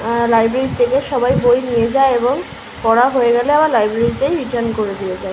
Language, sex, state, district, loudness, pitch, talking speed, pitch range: Bengali, female, West Bengal, Malda, -15 LUFS, 240 Hz, 200 wpm, 230-265 Hz